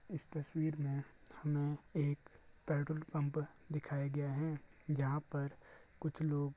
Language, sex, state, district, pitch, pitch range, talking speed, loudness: Hindi, male, Bihar, Darbhanga, 150 Hz, 145-155 Hz, 135 wpm, -40 LUFS